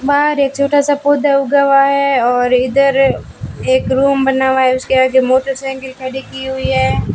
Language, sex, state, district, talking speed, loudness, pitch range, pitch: Hindi, female, Rajasthan, Bikaner, 185 wpm, -13 LUFS, 255-280 Hz, 270 Hz